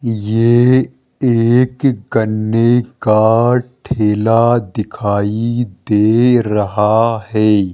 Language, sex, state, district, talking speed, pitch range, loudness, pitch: Hindi, male, Rajasthan, Jaipur, 70 wpm, 105-120 Hz, -14 LUFS, 115 Hz